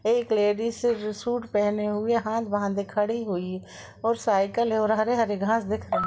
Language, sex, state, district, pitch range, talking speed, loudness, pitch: Hindi, female, Uttar Pradesh, Jalaun, 205-230 Hz, 180 wpm, -26 LUFS, 215 Hz